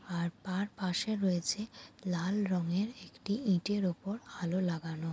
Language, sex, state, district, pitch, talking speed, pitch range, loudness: Bengali, female, West Bengal, Jhargram, 185 Hz, 140 wpm, 175-205 Hz, -34 LUFS